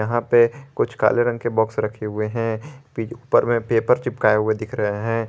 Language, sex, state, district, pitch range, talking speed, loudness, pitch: Hindi, male, Jharkhand, Garhwa, 110-120 Hz, 205 wpm, -21 LUFS, 115 Hz